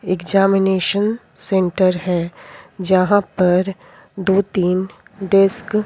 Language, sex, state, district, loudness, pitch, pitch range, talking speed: Hindi, female, Chhattisgarh, Kabirdham, -17 LUFS, 190 Hz, 185-195 Hz, 90 wpm